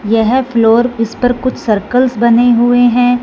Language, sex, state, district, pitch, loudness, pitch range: Hindi, female, Punjab, Fazilka, 240 Hz, -11 LUFS, 230-245 Hz